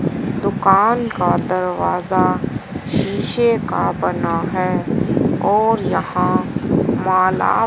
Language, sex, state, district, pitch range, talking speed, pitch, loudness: Hindi, female, Haryana, Rohtak, 185-225 Hz, 80 wpm, 195 Hz, -18 LUFS